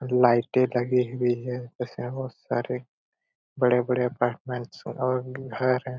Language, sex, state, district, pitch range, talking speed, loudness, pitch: Hindi, male, Chhattisgarh, Korba, 125-130 Hz, 140 wpm, -26 LUFS, 125 Hz